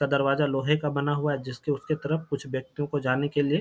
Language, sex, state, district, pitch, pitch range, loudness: Hindi, male, Bihar, Jamui, 145 Hz, 140-145 Hz, -27 LUFS